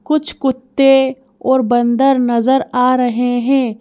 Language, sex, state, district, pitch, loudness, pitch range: Hindi, female, Madhya Pradesh, Bhopal, 260 Hz, -14 LUFS, 245-270 Hz